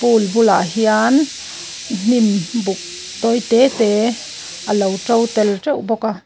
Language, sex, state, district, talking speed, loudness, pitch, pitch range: Mizo, female, Mizoram, Aizawl, 125 wpm, -16 LUFS, 220 Hz, 200-230 Hz